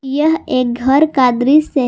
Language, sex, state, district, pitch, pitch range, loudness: Hindi, female, Jharkhand, Palamu, 270 Hz, 255-300 Hz, -13 LUFS